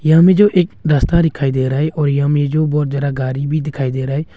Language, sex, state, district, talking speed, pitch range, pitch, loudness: Hindi, male, Arunachal Pradesh, Longding, 290 wpm, 140-155 Hz, 145 Hz, -15 LUFS